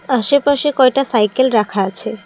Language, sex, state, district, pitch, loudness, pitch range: Bengali, female, Assam, Kamrup Metropolitan, 255 Hz, -15 LUFS, 215-275 Hz